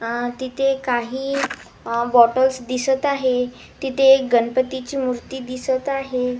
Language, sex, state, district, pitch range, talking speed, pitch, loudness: Marathi, female, Maharashtra, Washim, 245-270 Hz, 120 wpm, 255 Hz, -20 LUFS